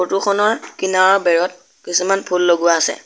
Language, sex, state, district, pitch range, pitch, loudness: Assamese, male, Assam, Sonitpur, 175-195 Hz, 185 Hz, -16 LUFS